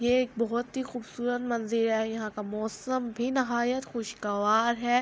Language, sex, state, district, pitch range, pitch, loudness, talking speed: Urdu, female, Andhra Pradesh, Anantapur, 220-245 Hz, 235 Hz, -29 LUFS, 250 wpm